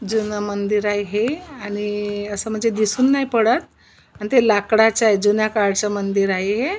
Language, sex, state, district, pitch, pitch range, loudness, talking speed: Marathi, female, Maharashtra, Nagpur, 210 Hz, 205-225 Hz, -19 LUFS, 170 wpm